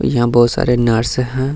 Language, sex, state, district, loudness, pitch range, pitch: Hindi, male, Bihar, Gaya, -15 LUFS, 120-130 Hz, 120 Hz